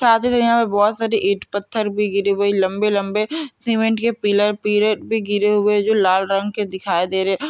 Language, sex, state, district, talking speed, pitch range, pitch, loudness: Hindi, female, Chhattisgarh, Bilaspur, 185 wpm, 200-225 Hz, 210 Hz, -18 LUFS